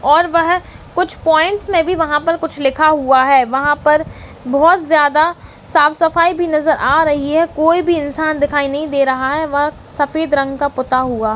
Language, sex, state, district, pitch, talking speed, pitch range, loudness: Hindi, female, Uttarakhand, Uttarkashi, 305 Hz, 195 wpm, 285-330 Hz, -14 LUFS